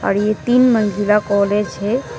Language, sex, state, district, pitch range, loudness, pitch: Hindi, female, West Bengal, Alipurduar, 205-225 Hz, -16 LUFS, 210 Hz